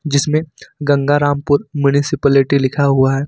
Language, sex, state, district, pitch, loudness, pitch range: Hindi, male, Jharkhand, Ranchi, 145 Hz, -15 LUFS, 140-145 Hz